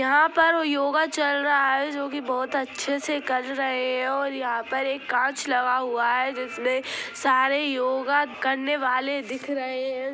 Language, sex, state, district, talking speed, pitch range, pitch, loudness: Bhojpuri, female, Bihar, Gopalganj, 180 wpm, 255-285 Hz, 270 Hz, -24 LUFS